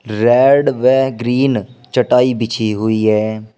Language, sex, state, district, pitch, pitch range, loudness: Hindi, male, Uttar Pradesh, Shamli, 120 Hz, 110-125 Hz, -14 LUFS